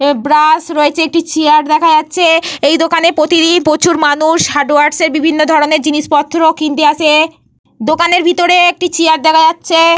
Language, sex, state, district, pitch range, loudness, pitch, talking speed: Bengali, female, Jharkhand, Jamtara, 300-330 Hz, -10 LUFS, 315 Hz, 145 wpm